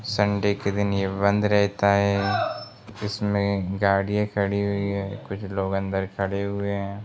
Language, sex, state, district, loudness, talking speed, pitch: Hindi, male, Uttar Pradesh, Gorakhpur, -24 LUFS, 155 wpm, 100 Hz